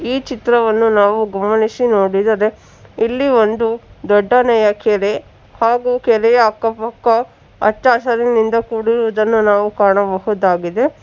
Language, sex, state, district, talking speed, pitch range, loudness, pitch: Kannada, female, Karnataka, Bangalore, 100 wpm, 205-235 Hz, -15 LUFS, 225 Hz